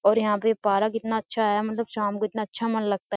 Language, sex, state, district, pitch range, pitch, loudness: Hindi, female, Uttar Pradesh, Jyotiba Phule Nagar, 205-225 Hz, 215 Hz, -25 LUFS